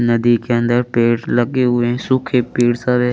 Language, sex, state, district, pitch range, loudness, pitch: Hindi, male, Chandigarh, Chandigarh, 120-125 Hz, -16 LUFS, 120 Hz